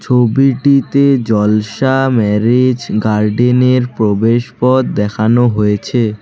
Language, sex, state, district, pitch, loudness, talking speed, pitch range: Bengali, male, West Bengal, Alipurduar, 120 Hz, -12 LUFS, 65 wpm, 105-130 Hz